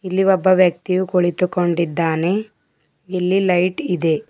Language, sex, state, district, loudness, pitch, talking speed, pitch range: Kannada, female, Karnataka, Bidar, -18 LUFS, 180 Hz, 100 wpm, 175-185 Hz